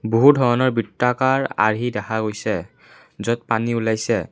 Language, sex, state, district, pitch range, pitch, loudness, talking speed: Assamese, male, Assam, Kamrup Metropolitan, 110-125 Hz, 115 Hz, -20 LUFS, 125 wpm